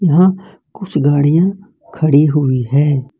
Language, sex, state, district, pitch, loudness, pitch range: Hindi, male, Jharkhand, Ranchi, 155 Hz, -14 LUFS, 145-190 Hz